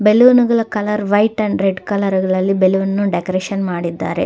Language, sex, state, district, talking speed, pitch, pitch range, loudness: Kannada, female, Karnataka, Dakshina Kannada, 140 wpm, 200 Hz, 185-210 Hz, -16 LUFS